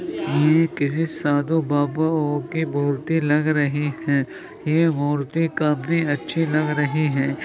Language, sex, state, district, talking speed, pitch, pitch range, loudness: Hindi, male, Uttar Pradesh, Jyotiba Phule Nagar, 130 wpm, 150 Hz, 145-160 Hz, -21 LUFS